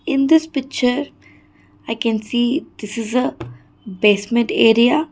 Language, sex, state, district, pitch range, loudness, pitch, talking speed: English, female, Karnataka, Bangalore, 220-275 Hz, -18 LUFS, 235 Hz, 130 wpm